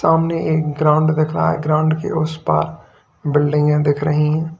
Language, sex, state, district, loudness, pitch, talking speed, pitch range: Hindi, male, Uttar Pradesh, Lalitpur, -17 LUFS, 155 Hz, 185 wpm, 150-155 Hz